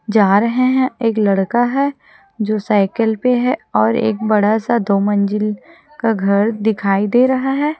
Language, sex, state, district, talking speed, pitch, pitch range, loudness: Hindi, female, Chhattisgarh, Raipur, 170 wpm, 220 Hz, 205-250 Hz, -16 LUFS